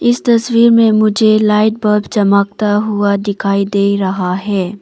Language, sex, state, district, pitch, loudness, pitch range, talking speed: Hindi, female, Arunachal Pradesh, Papum Pare, 210 Hz, -12 LUFS, 200-220 Hz, 150 wpm